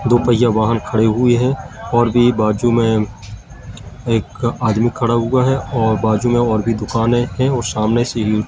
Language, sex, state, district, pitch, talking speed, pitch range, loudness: Hindi, male, Madhya Pradesh, Katni, 115 Hz, 175 wpm, 110-120 Hz, -16 LUFS